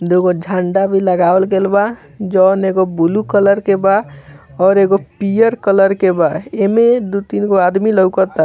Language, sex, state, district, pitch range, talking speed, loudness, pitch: Bhojpuri, male, Bihar, Muzaffarpur, 185-200 Hz, 165 wpm, -13 LUFS, 195 Hz